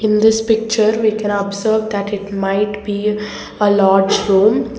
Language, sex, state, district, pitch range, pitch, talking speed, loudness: English, female, Karnataka, Bangalore, 200-220 Hz, 210 Hz, 150 wpm, -16 LUFS